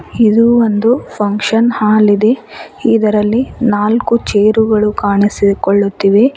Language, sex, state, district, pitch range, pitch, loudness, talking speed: Kannada, female, Karnataka, Bidar, 205-230 Hz, 215 Hz, -12 LUFS, 85 wpm